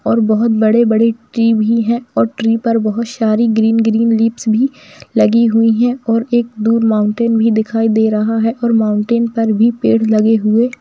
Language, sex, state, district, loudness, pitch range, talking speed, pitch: Hindi, female, Bihar, Jamui, -13 LUFS, 220-230 Hz, 195 wpm, 225 Hz